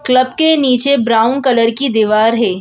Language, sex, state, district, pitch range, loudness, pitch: Hindi, female, Madhya Pradesh, Bhopal, 225-270 Hz, -12 LUFS, 250 Hz